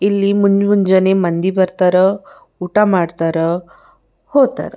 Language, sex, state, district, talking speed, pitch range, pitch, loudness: Kannada, female, Karnataka, Bijapur, 100 wpm, 180-200 Hz, 190 Hz, -15 LUFS